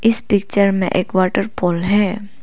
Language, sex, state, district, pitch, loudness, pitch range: Hindi, female, Arunachal Pradesh, Lower Dibang Valley, 200 Hz, -17 LUFS, 185-210 Hz